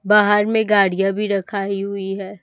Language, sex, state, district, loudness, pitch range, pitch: Hindi, female, Chhattisgarh, Raipur, -18 LUFS, 195-210 Hz, 200 Hz